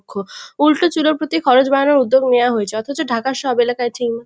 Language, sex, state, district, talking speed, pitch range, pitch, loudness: Bengali, female, West Bengal, Kolkata, 185 wpm, 240-290 Hz, 255 Hz, -16 LUFS